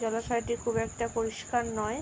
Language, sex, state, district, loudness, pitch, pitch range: Bengali, female, West Bengal, Dakshin Dinajpur, -31 LUFS, 230 Hz, 225-235 Hz